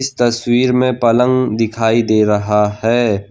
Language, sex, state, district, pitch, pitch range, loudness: Hindi, male, Gujarat, Valsad, 115 Hz, 110-125 Hz, -14 LUFS